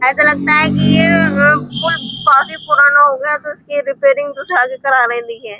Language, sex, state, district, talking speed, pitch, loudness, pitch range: Hindi, female, Uttar Pradesh, Muzaffarnagar, 160 wpm, 285 Hz, -12 LUFS, 260-295 Hz